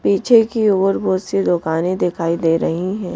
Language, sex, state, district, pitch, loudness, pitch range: Hindi, female, Madhya Pradesh, Bhopal, 185 Hz, -17 LUFS, 170-200 Hz